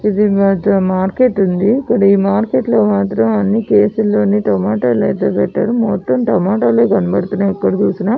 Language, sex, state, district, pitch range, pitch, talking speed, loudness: Telugu, female, Andhra Pradesh, Anantapur, 195-220 Hz, 205 Hz, 110 wpm, -14 LUFS